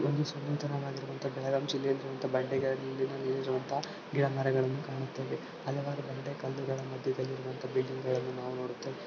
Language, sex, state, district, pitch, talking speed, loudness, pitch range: Kannada, male, Karnataka, Belgaum, 135 Hz, 125 wpm, -35 LUFS, 130-140 Hz